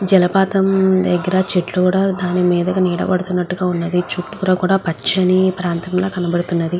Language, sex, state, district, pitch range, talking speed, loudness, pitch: Telugu, female, Andhra Pradesh, Guntur, 180-190 Hz, 115 wpm, -17 LUFS, 185 Hz